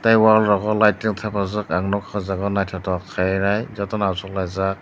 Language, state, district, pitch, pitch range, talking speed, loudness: Kokborok, Tripura, Dhalai, 100 Hz, 95-105 Hz, 210 wpm, -21 LUFS